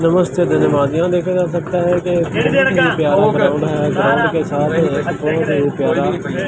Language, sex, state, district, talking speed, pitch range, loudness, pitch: Hindi, male, Delhi, New Delhi, 75 wpm, 150-175 Hz, -15 LUFS, 165 Hz